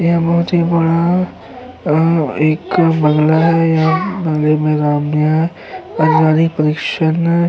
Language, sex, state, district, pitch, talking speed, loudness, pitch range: Hindi, male, Uttar Pradesh, Hamirpur, 160 Hz, 110 wpm, -14 LUFS, 155-170 Hz